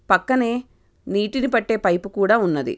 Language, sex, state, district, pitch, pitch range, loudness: Telugu, female, Telangana, Karimnagar, 225 Hz, 195-245 Hz, -20 LUFS